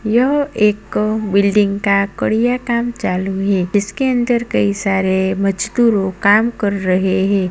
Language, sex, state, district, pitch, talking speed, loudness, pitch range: Hindi, male, Uttar Pradesh, Muzaffarnagar, 205 Hz, 135 wpm, -16 LUFS, 195-235 Hz